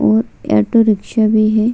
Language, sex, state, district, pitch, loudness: Hindi, female, Chhattisgarh, Sukma, 215 Hz, -14 LUFS